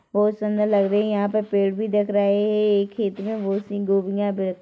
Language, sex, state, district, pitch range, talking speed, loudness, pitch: Hindi, female, Chhattisgarh, Korba, 200-210 Hz, 275 wpm, -22 LUFS, 205 Hz